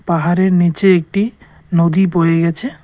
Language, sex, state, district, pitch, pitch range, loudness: Bengali, male, West Bengal, Cooch Behar, 175 Hz, 170-190 Hz, -14 LUFS